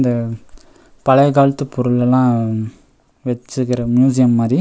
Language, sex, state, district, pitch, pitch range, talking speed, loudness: Tamil, male, Tamil Nadu, Nilgiris, 125 Hz, 120-130 Hz, 105 wpm, -16 LUFS